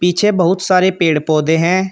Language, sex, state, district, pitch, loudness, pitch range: Hindi, male, Uttar Pradesh, Shamli, 180 Hz, -14 LUFS, 165-185 Hz